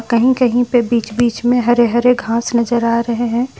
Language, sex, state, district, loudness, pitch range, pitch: Hindi, female, Jharkhand, Ranchi, -15 LUFS, 235-245 Hz, 240 Hz